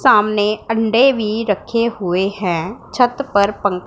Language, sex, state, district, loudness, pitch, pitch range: Hindi, female, Punjab, Pathankot, -17 LUFS, 215 Hz, 200-235 Hz